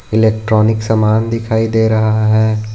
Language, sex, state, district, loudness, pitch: Hindi, male, Maharashtra, Aurangabad, -13 LUFS, 110 Hz